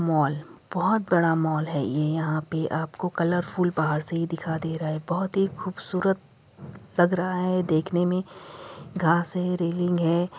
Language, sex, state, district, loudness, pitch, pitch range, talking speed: Hindi, female, Uttar Pradesh, Jyotiba Phule Nagar, -26 LUFS, 170 Hz, 160-180 Hz, 165 wpm